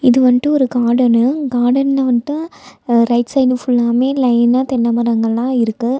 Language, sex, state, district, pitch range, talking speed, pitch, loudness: Tamil, female, Tamil Nadu, Nilgiris, 235-265 Hz, 140 wpm, 250 Hz, -14 LUFS